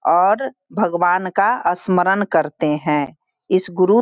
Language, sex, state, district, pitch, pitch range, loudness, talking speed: Hindi, female, Bihar, Sitamarhi, 180 Hz, 160-185 Hz, -18 LUFS, 135 wpm